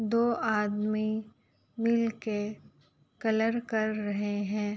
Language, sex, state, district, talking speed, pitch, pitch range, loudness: Hindi, female, Uttar Pradesh, Gorakhpur, 90 wpm, 215 Hz, 210-230 Hz, -30 LUFS